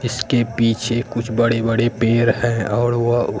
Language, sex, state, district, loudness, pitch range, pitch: Hindi, male, Bihar, Katihar, -18 LUFS, 115-120 Hz, 115 Hz